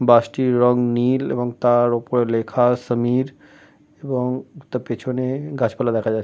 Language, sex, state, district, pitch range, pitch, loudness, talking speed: Bengali, male, West Bengal, Kolkata, 120-130 Hz, 125 Hz, -20 LUFS, 155 wpm